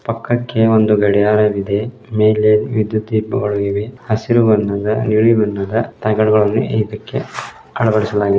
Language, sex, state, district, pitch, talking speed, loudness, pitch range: Kannada, male, Karnataka, Belgaum, 110 Hz, 105 wpm, -16 LUFS, 105-110 Hz